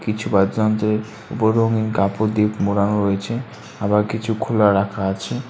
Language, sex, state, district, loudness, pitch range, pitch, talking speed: Bengali, male, West Bengal, Alipurduar, -20 LUFS, 100-110 Hz, 105 Hz, 155 wpm